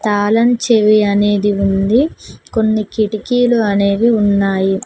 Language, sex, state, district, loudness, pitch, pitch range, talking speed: Telugu, female, Telangana, Mahabubabad, -14 LUFS, 215 Hz, 200-230 Hz, 100 wpm